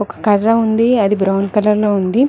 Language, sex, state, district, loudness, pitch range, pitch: Telugu, female, Telangana, Mahabubabad, -14 LUFS, 200-225 Hz, 210 Hz